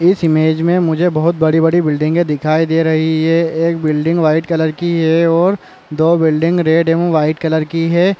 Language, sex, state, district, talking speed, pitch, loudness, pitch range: Hindi, male, Chhattisgarh, Korba, 190 wpm, 165 Hz, -14 LUFS, 160-170 Hz